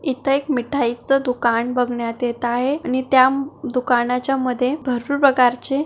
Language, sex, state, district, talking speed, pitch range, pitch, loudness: Marathi, male, Maharashtra, Sindhudurg, 155 wpm, 245-275 Hz, 255 Hz, -19 LUFS